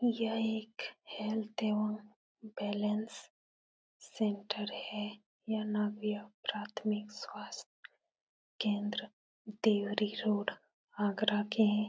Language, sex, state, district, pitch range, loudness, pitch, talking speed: Hindi, female, Uttar Pradesh, Etah, 210-220 Hz, -36 LUFS, 210 Hz, 80 wpm